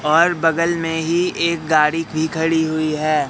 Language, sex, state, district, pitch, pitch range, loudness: Hindi, male, Madhya Pradesh, Katni, 160 Hz, 155-170 Hz, -18 LUFS